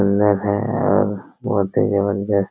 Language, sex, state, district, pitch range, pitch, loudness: Hindi, male, Chhattisgarh, Raigarh, 100-105 Hz, 100 Hz, -19 LUFS